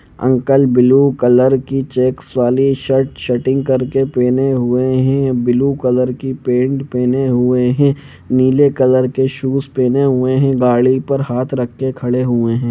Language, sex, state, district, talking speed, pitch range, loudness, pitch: Hindi, male, Jharkhand, Jamtara, 165 wpm, 125-135 Hz, -14 LUFS, 130 Hz